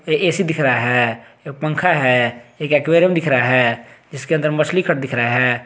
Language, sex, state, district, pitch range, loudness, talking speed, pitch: Hindi, male, Jharkhand, Garhwa, 120-160 Hz, -17 LUFS, 190 wpm, 140 Hz